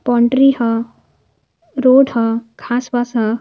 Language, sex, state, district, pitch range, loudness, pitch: Hindi, male, Uttar Pradesh, Varanasi, 230-260 Hz, -15 LUFS, 240 Hz